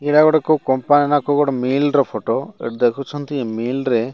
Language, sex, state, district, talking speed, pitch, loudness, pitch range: Odia, male, Odisha, Malkangiri, 175 wpm, 140 Hz, -18 LUFS, 125-145 Hz